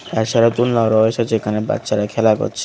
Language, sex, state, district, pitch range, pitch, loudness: Bengali, male, Tripura, West Tripura, 110-115 Hz, 110 Hz, -17 LUFS